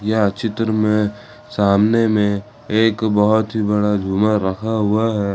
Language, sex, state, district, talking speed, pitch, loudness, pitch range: Hindi, male, Jharkhand, Ranchi, 170 wpm, 105 Hz, -17 LUFS, 105-110 Hz